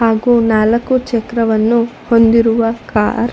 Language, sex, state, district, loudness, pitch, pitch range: Kannada, female, Karnataka, Shimoga, -13 LUFS, 230 Hz, 225-235 Hz